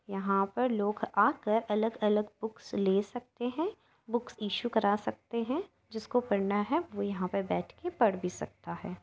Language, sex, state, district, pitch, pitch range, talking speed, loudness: Hindi, female, Uttar Pradesh, Jyotiba Phule Nagar, 215 Hz, 200-240 Hz, 175 wpm, -32 LUFS